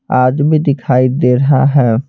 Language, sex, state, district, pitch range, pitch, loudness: Hindi, male, Bihar, Patna, 125-145 Hz, 135 Hz, -12 LUFS